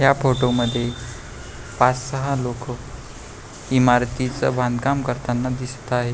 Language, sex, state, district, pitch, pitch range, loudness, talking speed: Marathi, male, Maharashtra, Pune, 125 Hz, 120-130 Hz, -21 LUFS, 110 wpm